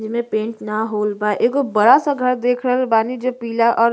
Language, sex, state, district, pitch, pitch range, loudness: Bhojpuri, female, Uttar Pradesh, Gorakhpur, 230 Hz, 220-250 Hz, -18 LUFS